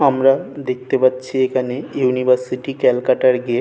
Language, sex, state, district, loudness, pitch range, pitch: Bengali, male, West Bengal, North 24 Parganas, -18 LUFS, 125-135 Hz, 130 Hz